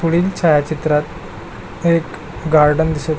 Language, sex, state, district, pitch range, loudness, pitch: Marathi, male, Maharashtra, Pune, 150-165 Hz, -16 LUFS, 155 Hz